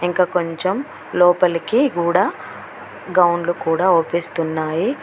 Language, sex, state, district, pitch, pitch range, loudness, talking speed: Telugu, female, Telangana, Mahabubabad, 175 Hz, 170-185 Hz, -18 LUFS, 85 wpm